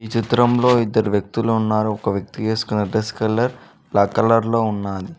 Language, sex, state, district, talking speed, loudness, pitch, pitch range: Telugu, male, Telangana, Mahabubabad, 150 wpm, -19 LUFS, 110 Hz, 105-115 Hz